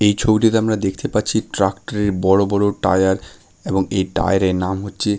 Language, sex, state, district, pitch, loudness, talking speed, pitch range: Bengali, male, West Bengal, Malda, 100 Hz, -18 LUFS, 185 wpm, 95-105 Hz